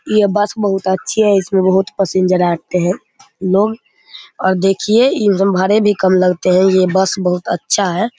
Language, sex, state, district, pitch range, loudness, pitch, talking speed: Hindi, male, Bihar, Begusarai, 185-205 Hz, -14 LUFS, 195 Hz, 185 wpm